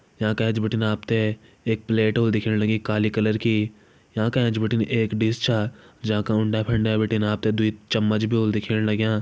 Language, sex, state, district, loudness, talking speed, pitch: Hindi, male, Uttarakhand, Tehri Garhwal, -23 LUFS, 190 wpm, 110 Hz